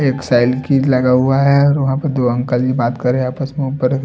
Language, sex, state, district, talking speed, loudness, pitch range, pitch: Hindi, male, Delhi, New Delhi, 235 wpm, -15 LUFS, 125-140 Hz, 130 Hz